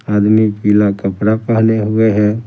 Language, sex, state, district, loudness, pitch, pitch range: Hindi, male, Bihar, Patna, -13 LUFS, 105 Hz, 105-110 Hz